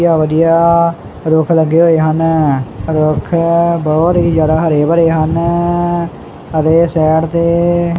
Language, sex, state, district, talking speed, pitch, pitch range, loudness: Punjabi, male, Punjab, Kapurthala, 120 wpm, 165 Hz, 155-170 Hz, -12 LUFS